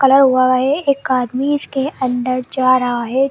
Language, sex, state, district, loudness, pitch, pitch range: Hindi, female, Delhi, New Delhi, -16 LUFS, 260 Hz, 255-275 Hz